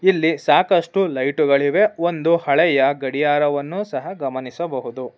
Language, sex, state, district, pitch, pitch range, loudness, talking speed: Kannada, female, Karnataka, Bangalore, 150 Hz, 140-175 Hz, -19 LUFS, 95 wpm